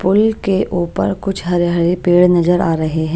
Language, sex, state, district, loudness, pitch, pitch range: Hindi, female, Maharashtra, Washim, -15 LUFS, 175 Hz, 170-190 Hz